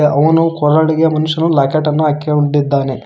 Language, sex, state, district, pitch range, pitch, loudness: Kannada, male, Karnataka, Koppal, 145-160 Hz, 150 Hz, -13 LUFS